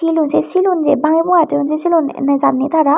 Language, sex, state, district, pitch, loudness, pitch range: Chakma, female, Tripura, Unakoti, 310 Hz, -14 LUFS, 285-330 Hz